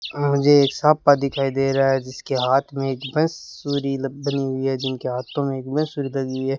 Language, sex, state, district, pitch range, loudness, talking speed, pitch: Hindi, male, Rajasthan, Bikaner, 135-140 Hz, -21 LUFS, 210 wpm, 135 Hz